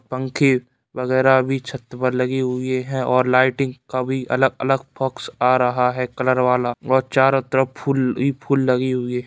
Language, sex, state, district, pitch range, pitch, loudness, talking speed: Hindi, male, Bihar, Darbhanga, 125-135 Hz, 130 Hz, -19 LUFS, 175 wpm